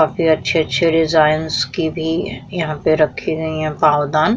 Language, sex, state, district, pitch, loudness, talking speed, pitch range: Hindi, female, Uttar Pradesh, Muzaffarnagar, 160 Hz, -17 LUFS, 165 wpm, 155-160 Hz